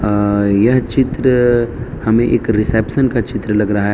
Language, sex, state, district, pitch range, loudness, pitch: Hindi, male, Gujarat, Valsad, 105-120 Hz, -15 LUFS, 115 Hz